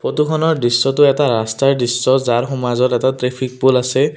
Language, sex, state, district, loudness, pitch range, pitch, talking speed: Assamese, male, Assam, Kamrup Metropolitan, -15 LUFS, 120-135 Hz, 130 Hz, 160 wpm